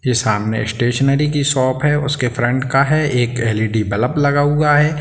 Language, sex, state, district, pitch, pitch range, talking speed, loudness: Hindi, male, Bihar, Sitamarhi, 130 Hz, 120-145 Hz, 190 wpm, -16 LUFS